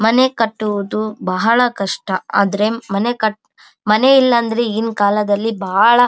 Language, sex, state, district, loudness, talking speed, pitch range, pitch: Kannada, female, Karnataka, Bellary, -16 LUFS, 130 wpm, 205-235 Hz, 215 Hz